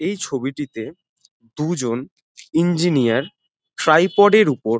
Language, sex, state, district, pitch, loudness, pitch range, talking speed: Bengali, male, West Bengal, Kolkata, 145 Hz, -18 LUFS, 120-175 Hz, 100 wpm